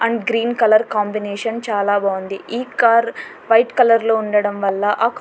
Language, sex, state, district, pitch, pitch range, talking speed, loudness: Telugu, female, Andhra Pradesh, Anantapur, 225 Hz, 205-230 Hz, 160 wpm, -17 LUFS